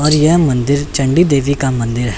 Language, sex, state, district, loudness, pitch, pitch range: Hindi, male, Chandigarh, Chandigarh, -13 LUFS, 140 Hz, 130-150 Hz